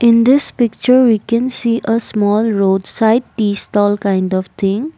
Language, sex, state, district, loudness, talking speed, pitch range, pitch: English, female, Assam, Kamrup Metropolitan, -14 LUFS, 170 wpm, 205-240 Hz, 225 Hz